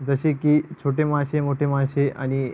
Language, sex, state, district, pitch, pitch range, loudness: Marathi, male, Maharashtra, Pune, 140 Hz, 140-150 Hz, -22 LUFS